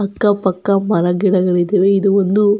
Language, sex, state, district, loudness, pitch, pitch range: Kannada, female, Karnataka, Dakshina Kannada, -15 LUFS, 195 Hz, 185-205 Hz